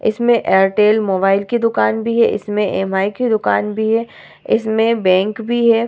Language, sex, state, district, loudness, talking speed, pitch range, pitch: Hindi, female, Bihar, Vaishali, -16 LUFS, 185 wpm, 195-230 Hz, 220 Hz